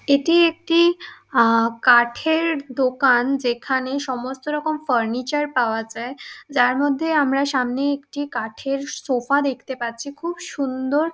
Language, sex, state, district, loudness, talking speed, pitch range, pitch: Bengali, female, West Bengal, Dakshin Dinajpur, -21 LUFS, 120 wpm, 245-295 Hz, 275 Hz